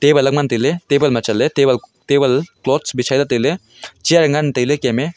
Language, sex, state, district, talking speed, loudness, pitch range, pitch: Wancho, male, Arunachal Pradesh, Longding, 115 wpm, -16 LUFS, 125-150 Hz, 140 Hz